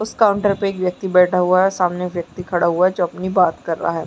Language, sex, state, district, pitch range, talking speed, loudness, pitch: Chhattisgarhi, female, Chhattisgarh, Jashpur, 175-190 Hz, 295 wpm, -18 LUFS, 180 Hz